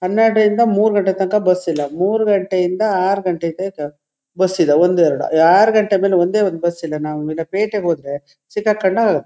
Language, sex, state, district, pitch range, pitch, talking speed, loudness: Kannada, female, Karnataka, Shimoga, 165-210 Hz, 185 Hz, 180 wpm, -16 LUFS